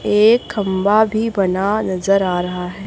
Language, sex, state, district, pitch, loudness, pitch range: Hindi, female, Chhattisgarh, Raipur, 195 Hz, -17 LUFS, 185-215 Hz